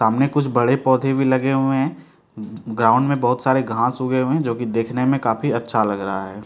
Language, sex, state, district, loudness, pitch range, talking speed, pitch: Hindi, male, Delhi, New Delhi, -19 LUFS, 115-135 Hz, 230 wpm, 125 Hz